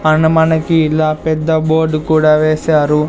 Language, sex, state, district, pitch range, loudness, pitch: Telugu, male, Andhra Pradesh, Sri Satya Sai, 155-160 Hz, -13 LUFS, 155 Hz